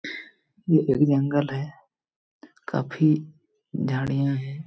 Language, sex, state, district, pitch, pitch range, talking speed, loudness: Hindi, male, Jharkhand, Jamtara, 145 Hz, 135-155 Hz, 90 wpm, -24 LUFS